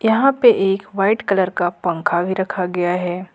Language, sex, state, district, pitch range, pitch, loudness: Hindi, female, Jharkhand, Ranchi, 180-210 Hz, 190 Hz, -18 LUFS